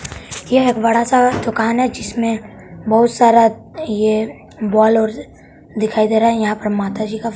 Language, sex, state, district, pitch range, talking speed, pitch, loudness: Hindi, male, Bihar, West Champaran, 215-230 Hz, 170 wpm, 225 Hz, -16 LUFS